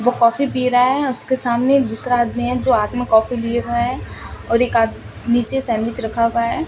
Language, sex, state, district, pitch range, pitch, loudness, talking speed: Hindi, female, Rajasthan, Bikaner, 230-255 Hz, 240 Hz, -18 LUFS, 225 wpm